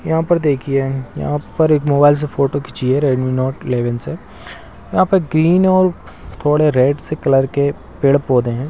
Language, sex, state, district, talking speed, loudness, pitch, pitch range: Hindi, male, Bihar, Darbhanga, 185 wpm, -16 LUFS, 140 Hz, 130-150 Hz